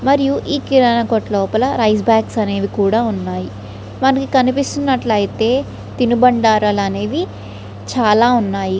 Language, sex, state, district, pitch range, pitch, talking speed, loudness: Telugu, female, Andhra Pradesh, Srikakulam, 200-255 Hz, 220 Hz, 110 wpm, -16 LUFS